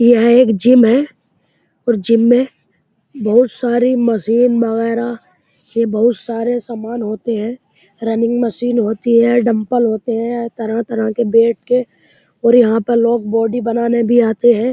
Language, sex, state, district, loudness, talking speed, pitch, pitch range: Hindi, male, Uttar Pradesh, Muzaffarnagar, -14 LUFS, 150 wpm, 235 Hz, 225-240 Hz